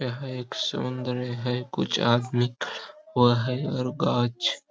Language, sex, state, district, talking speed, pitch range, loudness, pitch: Hindi, male, Jharkhand, Sahebganj, 140 wpm, 120-125 Hz, -26 LUFS, 125 Hz